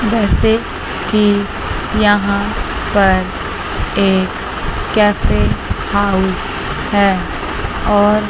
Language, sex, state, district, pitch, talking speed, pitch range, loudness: Hindi, female, Chandigarh, Chandigarh, 205 Hz, 65 wpm, 195-210 Hz, -15 LUFS